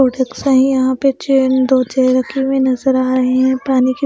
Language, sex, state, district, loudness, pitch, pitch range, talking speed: Hindi, female, Punjab, Pathankot, -14 LUFS, 260 Hz, 255-270 Hz, 250 wpm